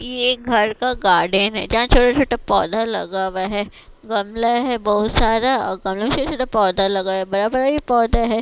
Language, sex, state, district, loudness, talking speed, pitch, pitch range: Hindi, female, Bihar, West Champaran, -18 LUFS, 190 wpm, 225 Hz, 200-245 Hz